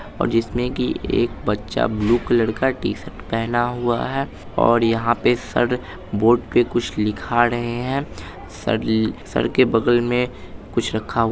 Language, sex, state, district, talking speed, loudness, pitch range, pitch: Hindi, male, Bihar, Madhepura, 165 wpm, -20 LUFS, 110-120 Hz, 115 Hz